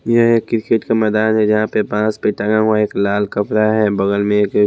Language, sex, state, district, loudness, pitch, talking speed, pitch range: Hindi, male, Himachal Pradesh, Shimla, -16 LUFS, 110 Hz, 245 wpm, 105-110 Hz